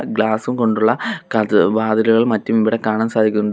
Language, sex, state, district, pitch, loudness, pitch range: Malayalam, male, Kerala, Kollam, 110 Hz, -17 LUFS, 110-115 Hz